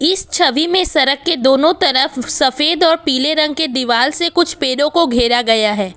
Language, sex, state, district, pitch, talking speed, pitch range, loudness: Hindi, female, Assam, Kamrup Metropolitan, 295 Hz, 200 wpm, 260-335 Hz, -14 LUFS